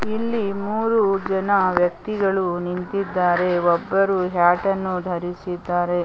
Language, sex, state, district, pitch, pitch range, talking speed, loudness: Kannada, female, Karnataka, Chamarajanagar, 185 Hz, 175-200 Hz, 90 wpm, -21 LUFS